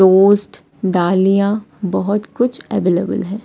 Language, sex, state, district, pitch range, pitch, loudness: Hindi, female, Odisha, Sambalpur, 190-210 Hz, 200 Hz, -16 LUFS